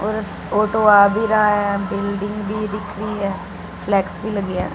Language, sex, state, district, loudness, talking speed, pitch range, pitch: Hindi, female, Punjab, Fazilka, -19 LUFS, 190 wpm, 200-215 Hz, 210 Hz